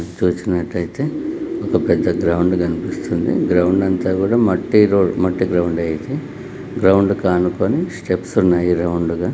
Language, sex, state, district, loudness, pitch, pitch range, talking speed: Telugu, male, Telangana, Nalgonda, -17 LUFS, 90 Hz, 85-100 Hz, 120 wpm